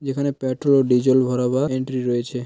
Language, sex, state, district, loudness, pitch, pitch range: Bengali, male, West Bengal, Paschim Medinipur, -20 LUFS, 130 Hz, 125-135 Hz